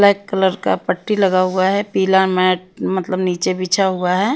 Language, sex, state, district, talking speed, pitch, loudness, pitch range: Hindi, female, Himachal Pradesh, Shimla, 190 wpm, 190 Hz, -17 LUFS, 185-195 Hz